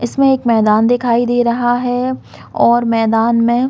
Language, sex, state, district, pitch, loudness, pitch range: Hindi, female, Chhattisgarh, Bilaspur, 240 Hz, -14 LUFS, 230-245 Hz